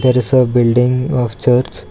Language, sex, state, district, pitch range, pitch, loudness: English, male, Karnataka, Bangalore, 120-125 Hz, 125 Hz, -14 LUFS